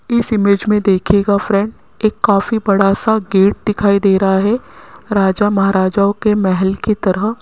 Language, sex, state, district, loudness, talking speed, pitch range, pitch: Hindi, female, Rajasthan, Jaipur, -14 LUFS, 170 wpm, 195-215 Hz, 200 Hz